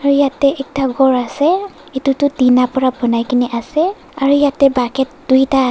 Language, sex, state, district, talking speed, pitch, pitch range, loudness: Nagamese, female, Nagaland, Dimapur, 170 wpm, 270 Hz, 255-285 Hz, -15 LUFS